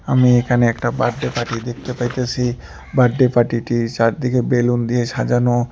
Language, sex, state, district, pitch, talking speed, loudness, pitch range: Bengali, male, West Bengal, Alipurduar, 120 Hz, 145 wpm, -18 LUFS, 120-125 Hz